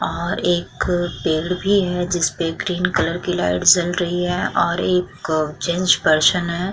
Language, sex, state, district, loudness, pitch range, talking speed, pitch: Hindi, female, Uttar Pradesh, Muzaffarnagar, -19 LUFS, 165-180 Hz, 170 wpm, 175 Hz